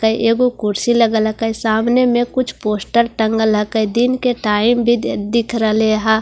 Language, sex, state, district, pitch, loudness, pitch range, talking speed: Hindi, female, Bihar, Katihar, 225 Hz, -16 LUFS, 220-240 Hz, 175 wpm